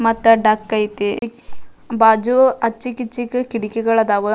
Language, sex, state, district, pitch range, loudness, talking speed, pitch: Kannada, female, Karnataka, Dharwad, 215-240 Hz, -17 LUFS, 110 wpm, 225 Hz